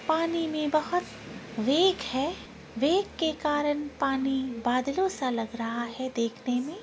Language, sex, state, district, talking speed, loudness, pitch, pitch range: Angika, female, Bihar, Araria, 140 wpm, -28 LUFS, 275 Hz, 245-320 Hz